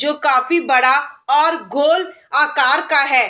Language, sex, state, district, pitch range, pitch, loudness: Hindi, female, Bihar, Sitamarhi, 280-340 Hz, 295 Hz, -15 LUFS